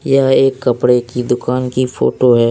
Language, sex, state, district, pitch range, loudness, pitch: Hindi, male, Jharkhand, Deoghar, 125-130 Hz, -14 LUFS, 125 Hz